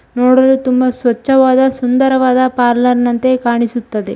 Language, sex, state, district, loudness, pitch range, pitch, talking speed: Kannada, female, Karnataka, Shimoga, -12 LUFS, 240-260 Hz, 255 Hz, 100 wpm